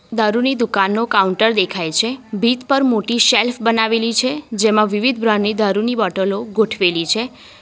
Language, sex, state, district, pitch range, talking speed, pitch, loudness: Gujarati, female, Gujarat, Valsad, 210-235 Hz, 150 wpm, 225 Hz, -16 LUFS